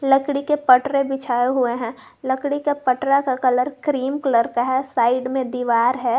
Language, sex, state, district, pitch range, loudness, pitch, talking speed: Hindi, female, Jharkhand, Garhwa, 250-275 Hz, -20 LUFS, 260 Hz, 185 wpm